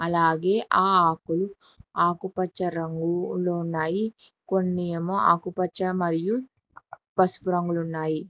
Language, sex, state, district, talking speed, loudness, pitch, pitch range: Telugu, female, Telangana, Hyderabad, 95 wpm, -24 LUFS, 180 Hz, 165-185 Hz